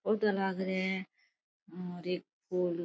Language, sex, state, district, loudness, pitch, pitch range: Rajasthani, female, Rajasthan, Nagaur, -35 LUFS, 185 Hz, 180-190 Hz